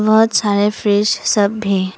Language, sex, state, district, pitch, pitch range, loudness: Hindi, female, Arunachal Pradesh, Papum Pare, 205 Hz, 200-215 Hz, -15 LUFS